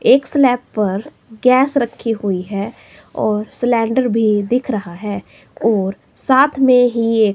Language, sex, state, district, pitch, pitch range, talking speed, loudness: Hindi, female, Himachal Pradesh, Shimla, 225 Hz, 205-255 Hz, 145 wpm, -16 LUFS